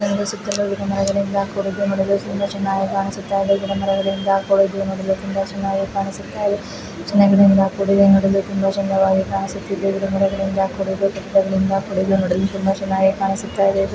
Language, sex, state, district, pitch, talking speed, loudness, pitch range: Kannada, female, Karnataka, Belgaum, 195 Hz, 125 wpm, -19 LUFS, 195-200 Hz